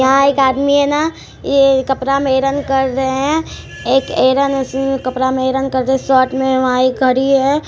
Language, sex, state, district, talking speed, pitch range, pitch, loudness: Hindi, female, Bihar, Araria, 195 wpm, 260-275 Hz, 270 Hz, -14 LUFS